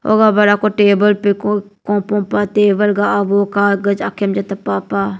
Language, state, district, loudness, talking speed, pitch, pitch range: Nyishi, Arunachal Pradesh, Papum Pare, -15 LUFS, 125 wpm, 205 Hz, 200-205 Hz